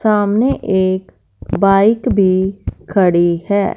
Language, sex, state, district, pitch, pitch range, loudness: Hindi, female, Punjab, Fazilka, 195 Hz, 185-205 Hz, -14 LUFS